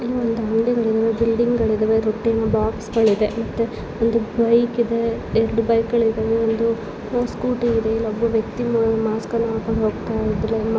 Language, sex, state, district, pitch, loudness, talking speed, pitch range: Kannada, female, Karnataka, Belgaum, 225 Hz, -20 LUFS, 120 wpm, 220-230 Hz